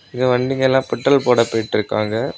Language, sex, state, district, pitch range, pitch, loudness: Tamil, male, Tamil Nadu, Kanyakumari, 115-130 Hz, 125 Hz, -17 LUFS